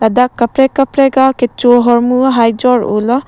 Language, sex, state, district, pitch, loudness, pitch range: Karbi, female, Assam, Karbi Anglong, 250 Hz, -11 LUFS, 235-265 Hz